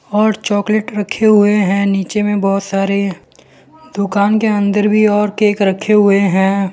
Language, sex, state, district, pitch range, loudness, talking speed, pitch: Hindi, male, Gujarat, Valsad, 195-210 Hz, -14 LUFS, 160 wpm, 205 Hz